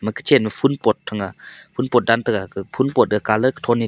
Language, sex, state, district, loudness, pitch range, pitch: Wancho, male, Arunachal Pradesh, Longding, -19 LUFS, 110-130 Hz, 120 Hz